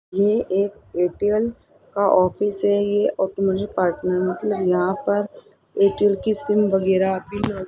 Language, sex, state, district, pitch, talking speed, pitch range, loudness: Hindi, female, Rajasthan, Jaipur, 200 Hz, 125 wpm, 190-205 Hz, -21 LUFS